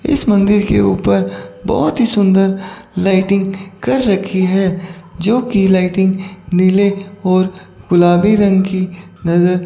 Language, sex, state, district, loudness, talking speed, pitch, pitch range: Hindi, female, Chandigarh, Chandigarh, -14 LUFS, 120 wpm, 190 Hz, 180-200 Hz